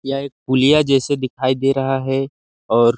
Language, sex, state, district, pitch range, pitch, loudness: Hindi, male, Chhattisgarh, Sarguja, 130-135 Hz, 135 Hz, -18 LUFS